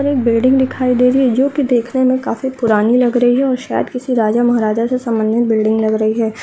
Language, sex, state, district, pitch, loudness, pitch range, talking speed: Hindi, female, Uttarakhand, Tehri Garhwal, 245 Hz, -14 LUFS, 225-255 Hz, 245 wpm